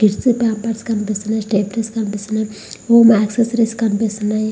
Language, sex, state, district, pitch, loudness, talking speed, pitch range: Telugu, female, Andhra Pradesh, Visakhapatnam, 220 Hz, -17 LUFS, 120 wpm, 210-230 Hz